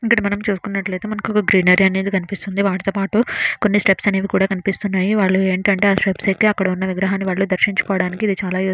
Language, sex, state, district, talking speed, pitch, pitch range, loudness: Telugu, female, Andhra Pradesh, Srikakulam, 185 wpm, 195 Hz, 190-205 Hz, -18 LUFS